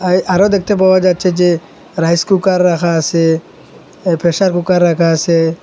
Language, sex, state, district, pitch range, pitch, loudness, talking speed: Bengali, male, Assam, Hailakandi, 170-185 Hz, 175 Hz, -13 LUFS, 160 wpm